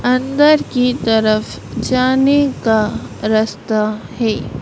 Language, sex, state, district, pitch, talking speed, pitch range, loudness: Hindi, female, Madhya Pradesh, Dhar, 235 Hz, 90 wpm, 220-260 Hz, -15 LUFS